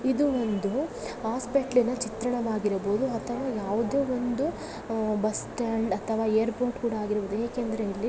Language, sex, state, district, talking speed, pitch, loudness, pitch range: Kannada, female, Karnataka, Bellary, 125 wpm, 230 Hz, -28 LUFS, 215-250 Hz